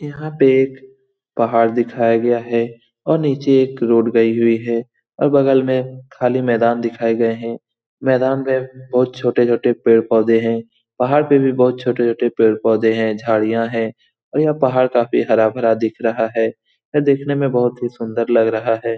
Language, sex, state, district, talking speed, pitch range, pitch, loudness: Hindi, male, Bihar, Lakhisarai, 190 wpm, 115-130 Hz, 120 Hz, -17 LUFS